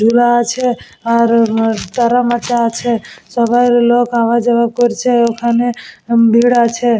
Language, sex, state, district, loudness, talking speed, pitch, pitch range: Bengali, female, West Bengal, Purulia, -13 LUFS, 130 wpm, 235 Hz, 230-240 Hz